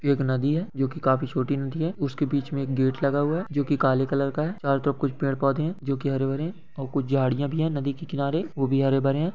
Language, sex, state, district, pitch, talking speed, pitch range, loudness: Hindi, male, West Bengal, Kolkata, 140 Hz, 290 wpm, 135-150 Hz, -25 LUFS